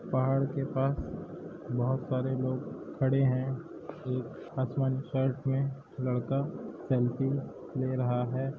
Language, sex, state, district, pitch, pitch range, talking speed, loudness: Hindi, male, Uttar Pradesh, Hamirpur, 130 Hz, 130-135 Hz, 120 wpm, -32 LUFS